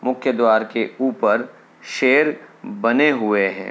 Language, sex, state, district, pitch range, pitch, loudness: Hindi, male, Uttar Pradesh, Hamirpur, 105-130 Hz, 115 Hz, -18 LUFS